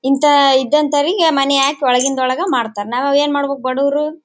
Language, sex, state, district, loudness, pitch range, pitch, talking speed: Kannada, female, Karnataka, Bellary, -15 LUFS, 260-295 Hz, 280 Hz, 155 wpm